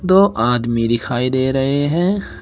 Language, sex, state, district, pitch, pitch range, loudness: Hindi, male, Uttar Pradesh, Shamli, 130 Hz, 120-175 Hz, -17 LUFS